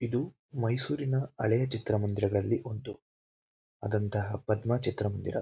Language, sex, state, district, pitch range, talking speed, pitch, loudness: Kannada, male, Karnataka, Mysore, 105-120 Hz, 110 wpm, 115 Hz, -31 LUFS